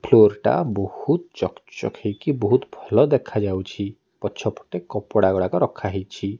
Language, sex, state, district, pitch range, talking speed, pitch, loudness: Odia, male, Odisha, Nuapada, 95-105 Hz, 115 wpm, 100 Hz, -22 LUFS